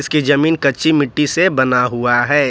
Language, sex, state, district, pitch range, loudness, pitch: Hindi, male, Jharkhand, Ranchi, 125-150 Hz, -14 LUFS, 145 Hz